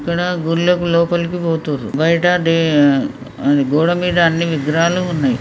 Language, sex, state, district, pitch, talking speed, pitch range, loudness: Telugu, male, Telangana, Karimnagar, 165 Hz, 110 wpm, 150-175 Hz, -16 LUFS